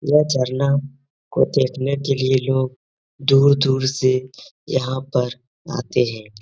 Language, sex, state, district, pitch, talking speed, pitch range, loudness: Hindi, male, Uttar Pradesh, Etah, 130 Hz, 130 wpm, 130-140 Hz, -20 LUFS